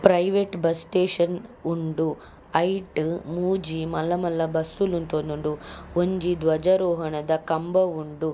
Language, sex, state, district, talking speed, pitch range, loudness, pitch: Tulu, female, Karnataka, Dakshina Kannada, 110 wpm, 160-180 Hz, -25 LUFS, 165 Hz